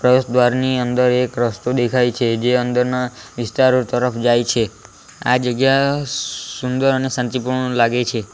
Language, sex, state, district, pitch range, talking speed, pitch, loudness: Gujarati, male, Gujarat, Valsad, 120-130 Hz, 145 wpm, 125 Hz, -18 LUFS